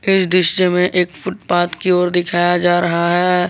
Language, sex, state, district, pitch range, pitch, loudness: Hindi, male, Jharkhand, Garhwa, 175-180 Hz, 180 Hz, -15 LUFS